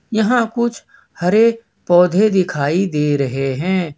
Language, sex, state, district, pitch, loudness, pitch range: Hindi, male, Jharkhand, Ranchi, 185 Hz, -16 LUFS, 150-220 Hz